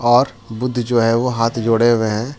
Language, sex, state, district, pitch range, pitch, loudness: Hindi, male, Jharkhand, Ranchi, 115-120 Hz, 120 Hz, -17 LUFS